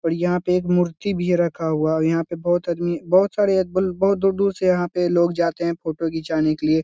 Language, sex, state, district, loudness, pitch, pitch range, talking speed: Hindi, male, Bihar, Lakhisarai, -21 LUFS, 175 Hz, 165-180 Hz, 265 wpm